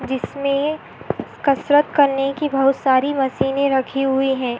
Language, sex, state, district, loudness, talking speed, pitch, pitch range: Hindi, female, Uttar Pradesh, Hamirpur, -19 LUFS, 145 wpm, 270 Hz, 265-280 Hz